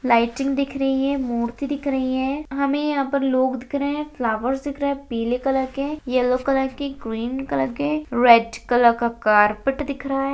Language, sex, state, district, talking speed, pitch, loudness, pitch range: Hindi, female, Rajasthan, Churu, 205 wpm, 270 Hz, -21 LUFS, 240-280 Hz